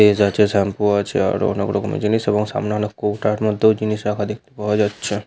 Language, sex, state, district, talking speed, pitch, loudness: Bengali, male, West Bengal, Jhargram, 205 wpm, 105 Hz, -19 LUFS